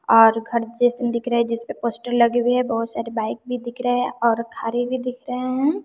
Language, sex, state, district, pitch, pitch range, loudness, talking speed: Hindi, female, Bihar, West Champaran, 240 Hz, 230-250 Hz, -21 LUFS, 255 wpm